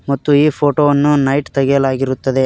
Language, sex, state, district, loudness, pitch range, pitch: Kannada, male, Karnataka, Koppal, -14 LUFS, 135-145 Hz, 140 Hz